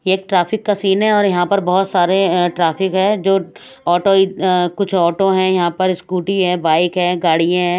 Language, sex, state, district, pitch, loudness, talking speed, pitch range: Hindi, female, Odisha, Malkangiri, 185 Hz, -15 LUFS, 210 wpm, 175-195 Hz